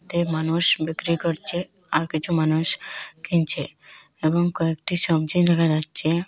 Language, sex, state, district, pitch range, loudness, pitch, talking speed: Bengali, female, Assam, Hailakandi, 160-175 Hz, -19 LUFS, 165 Hz, 125 wpm